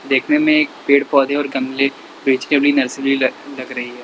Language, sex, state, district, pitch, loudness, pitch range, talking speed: Hindi, male, Uttar Pradesh, Lalitpur, 135 Hz, -17 LUFS, 130-145 Hz, 180 wpm